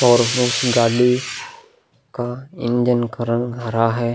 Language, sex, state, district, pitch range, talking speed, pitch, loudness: Hindi, male, Bihar, Vaishali, 120-125 Hz, 130 wpm, 120 Hz, -19 LUFS